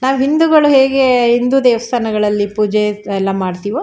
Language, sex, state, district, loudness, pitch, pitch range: Kannada, female, Karnataka, Shimoga, -13 LUFS, 235 Hz, 205-265 Hz